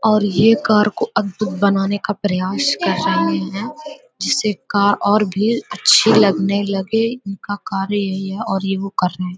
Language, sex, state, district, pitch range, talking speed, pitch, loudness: Hindi, female, Uttar Pradesh, Hamirpur, 190-215 Hz, 180 wpm, 200 Hz, -17 LUFS